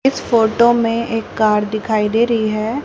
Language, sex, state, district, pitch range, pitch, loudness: Hindi, female, Haryana, Rohtak, 215-235 Hz, 225 Hz, -16 LUFS